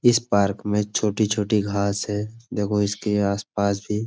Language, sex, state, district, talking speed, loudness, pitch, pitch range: Hindi, male, Uttar Pradesh, Budaun, 175 wpm, -23 LUFS, 105 Hz, 100-105 Hz